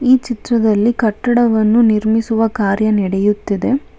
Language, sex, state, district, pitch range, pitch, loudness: Kannada, female, Karnataka, Bangalore, 210-235 Hz, 220 Hz, -15 LUFS